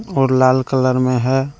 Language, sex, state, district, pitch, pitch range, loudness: Hindi, male, Jharkhand, Deoghar, 130 Hz, 130-135 Hz, -16 LUFS